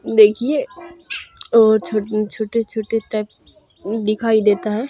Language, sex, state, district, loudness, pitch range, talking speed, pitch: Maithili, female, Bihar, Supaul, -18 LUFS, 215-230 Hz, 100 wpm, 220 Hz